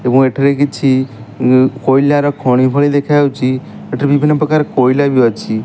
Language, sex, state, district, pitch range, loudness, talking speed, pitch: Odia, male, Odisha, Malkangiri, 125-145 Hz, -12 LUFS, 160 wpm, 135 Hz